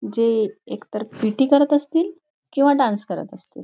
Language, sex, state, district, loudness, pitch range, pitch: Marathi, female, Maharashtra, Nagpur, -20 LUFS, 220-290 Hz, 270 Hz